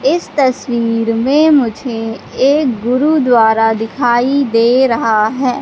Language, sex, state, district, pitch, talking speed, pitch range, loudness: Hindi, female, Madhya Pradesh, Katni, 245 Hz, 105 wpm, 230-270 Hz, -13 LUFS